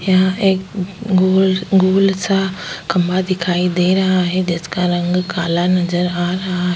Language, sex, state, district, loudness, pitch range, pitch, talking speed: Hindi, female, Goa, North and South Goa, -16 LUFS, 180-190 Hz, 185 Hz, 150 wpm